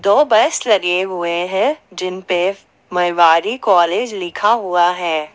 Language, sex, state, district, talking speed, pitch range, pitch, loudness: Hindi, female, Jharkhand, Ranchi, 135 wpm, 175-200 Hz, 180 Hz, -16 LUFS